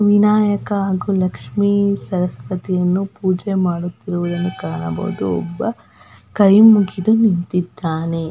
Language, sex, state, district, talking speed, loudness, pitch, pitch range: Kannada, female, Karnataka, Belgaum, 80 wpm, -17 LUFS, 185 Hz, 165-200 Hz